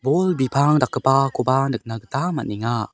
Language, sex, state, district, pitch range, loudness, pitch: Garo, male, Meghalaya, South Garo Hills, 120-140 Hz, -20 LUFS, 135 Hz